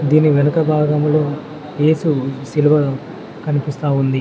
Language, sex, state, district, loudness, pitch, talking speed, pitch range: Telugu, male, Telangana, Mahabubabad, -16 LUFS, 150 Hz, 100 wpm, 145-150 Hz